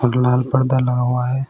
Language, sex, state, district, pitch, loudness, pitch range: Hindi, male, Uttar Pradesh, Shamli, 125 Hz, -18 LUFS, 125-130 Hz